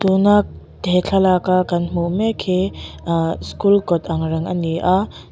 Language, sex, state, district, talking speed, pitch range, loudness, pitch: Mizo, female, Mizoram, Aizawl, 170 wpm, 170-195 Hz, -18 LUFS, 180 Hz